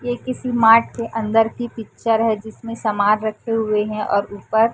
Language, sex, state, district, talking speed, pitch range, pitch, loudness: Hindi, female, Chhattisgarh, Raipur, 190 wpm, 215-230 Hz, 225 Hz, -19 LUFS